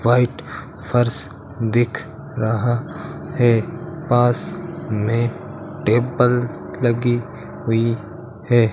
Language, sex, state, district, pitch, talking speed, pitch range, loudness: Hindi, male, Rajasthan, Bikaner, 120 Hz, 75 wpm, 115-130 Hz, -20 LUFS